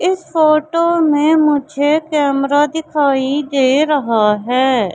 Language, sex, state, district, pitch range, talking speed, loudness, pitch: Hindi, female, Madhya Pradesh, Katni, 270-310 Hz, 110 wpm, -14 LUFS, 290 Hz